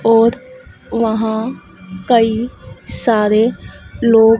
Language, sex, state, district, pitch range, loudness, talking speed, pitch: Hindi, female, Madhya Pradesh, Dhar, 220-235 Hz, -15 LUFS, 70 wpm, 225 Hz